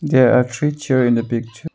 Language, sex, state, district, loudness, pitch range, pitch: English, male, Arunachal Pradesh, Longding, -17 LUFS, 120-150 Hz, 125 Hz